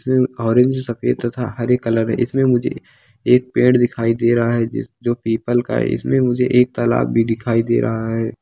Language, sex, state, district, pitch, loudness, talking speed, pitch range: Hindi, male, Bihar, Samastipur, 120 Hz, -18 LUFS, 185 wpm, 115-125 Hz